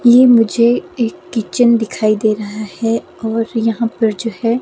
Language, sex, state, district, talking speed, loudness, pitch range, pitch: Hindi, female, Himachal Pradesh, Shimla, 170 wpm, -15 LUFS, 220-235 Hz, 225 Hz